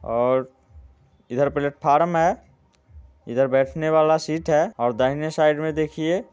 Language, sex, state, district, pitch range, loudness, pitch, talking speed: Hindi, male, Bihar, Muzaffarpur, 125-155 Hz, -21 LUFS, 145 Hz, 130 wpm